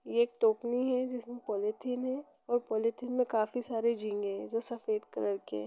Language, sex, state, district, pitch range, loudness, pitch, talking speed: Hindi, female, Chhattisgarh, Rajnandgaon, 215-245 Hz, -32 LUFS, 235 Hz, 200 wpm